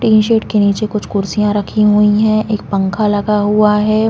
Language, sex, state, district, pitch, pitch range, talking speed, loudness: Hindi, female, Chhattisgarh, Balrampur, 210 Hz, 205-215 Hz, 205 wpm, -13 LUFS